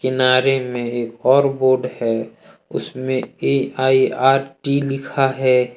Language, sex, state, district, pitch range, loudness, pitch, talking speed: Hindi, male, Jharkhand, Deoghar, 125-135 Hz, -18 LUFS, 130 Hz, 95 wpm